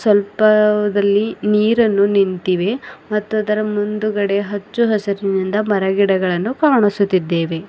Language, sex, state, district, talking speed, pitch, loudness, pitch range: Kannada, female, Karnataka, Bidar, 80 wpm, 205 Hz, -17 LUFS, 195-215 Hz